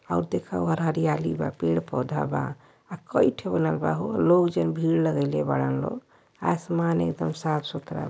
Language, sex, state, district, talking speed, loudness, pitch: Bhojpuri, female, Uttar Pradesh, Varanasi, 185 wpm, -26 LUFS, 140 Hz